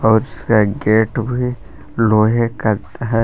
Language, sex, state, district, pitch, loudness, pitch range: Hindi, male, Jharkhand, Palamu, 110 Hz, -17 LUFS, 110-115 Hz